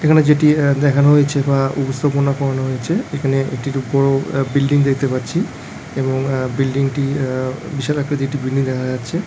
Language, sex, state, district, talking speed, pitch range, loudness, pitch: Bengali, male, West Bengal, Dakshin Dinajpur, 155 wpm, 135-145 Hz, -17 LUFS, 140 Hz